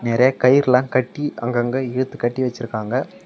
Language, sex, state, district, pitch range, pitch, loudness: Tamil, male, Tamil Nadu, Namakkal, 120-130 Hz, 125 Hz, -19 LUFS